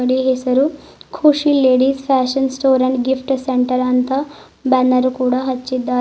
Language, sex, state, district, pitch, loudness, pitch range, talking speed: Kannada, female, Karnataka, Bidar, 260 Hz, -16 LUFS, 255-270 Hz, 130 wpm